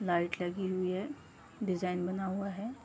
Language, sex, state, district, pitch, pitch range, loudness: Hindi, female, Uttar Pradesh, Gorakhpur, 185 Hz, 180-200 Hz, -35 LUFS